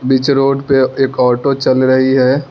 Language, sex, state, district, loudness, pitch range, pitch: Hindi, male, Arunachal Pradesh, Lower Dibang Valley, -12 LUFS, 130-135 Hz, 135 Hz